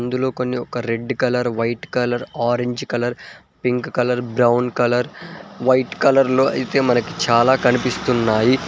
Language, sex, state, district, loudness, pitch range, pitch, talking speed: Telugu, male, Telangana, Mahabubabad, -19 LUFS, 120-130 Hz, 125 Hz, 140 wpm